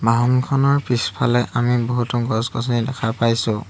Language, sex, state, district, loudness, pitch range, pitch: Assamese, male, Assam, Hailakandi, -19 LUFS, 115-125 Hz, 120 Hz